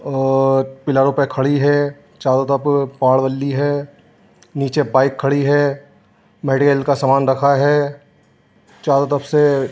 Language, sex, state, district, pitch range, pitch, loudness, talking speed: Hindi, male, Uttar Pradesh, Jyotiba Phule Nagar, 135-145 Hz, 140 Hz, -16 LUFS, 140 wpm